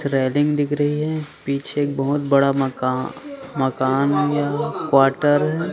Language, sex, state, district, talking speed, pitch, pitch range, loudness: Hindi, male, Chhattisgarh, Raipur, 135 wpm, 145 Hz, 135-150 Hz, -20 LUFS